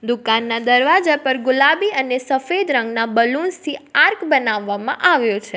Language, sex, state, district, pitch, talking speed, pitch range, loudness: Gujarati, female, Gujarat, Valsad, 265 Hz, 140 wpm, 230-300 Hz, -17 LUFS